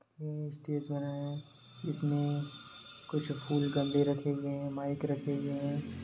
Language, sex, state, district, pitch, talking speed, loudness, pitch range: Hindi, male, Jharkhand, Jamtara, 145 Hz, 160 wpm, -35 LUFS, 140-145 Hz